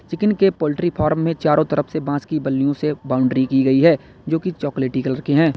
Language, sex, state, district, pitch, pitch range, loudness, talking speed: Hindi, male, Uttar Pradesh, Lalitpur, 150 Hz, 135-160 Hz, -19 LUFS, 235 wpm